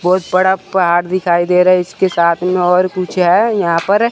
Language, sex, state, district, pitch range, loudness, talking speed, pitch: Hindi, male, Chandigarh, Chandigarh, 175-190 Hz, -13 LUFS, 220 wpm, 180 Hz